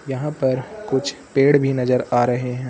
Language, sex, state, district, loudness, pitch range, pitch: Hindi, male, Uttar Pradesh, Lucknow, -20 LUFS, 125-140 Hz, 130 Hz